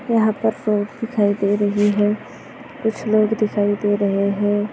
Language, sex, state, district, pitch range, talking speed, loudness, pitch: Hindi, female, Maharashtra, Aurangabad, 205-220 Hz, 150 wpm, -19 LUFS, 210 Hz